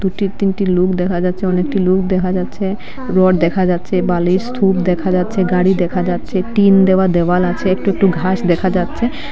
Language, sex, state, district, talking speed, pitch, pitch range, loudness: Bengali, female, Assam, Hailakandi, 175 wpm, 185 Hz, 180-195 Hz, -15 LUFS